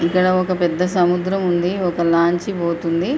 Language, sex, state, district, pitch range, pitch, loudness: Telugu, female, Telangana, Nalgonda, 170-185 Hz, 180 Hz, -18 LUFS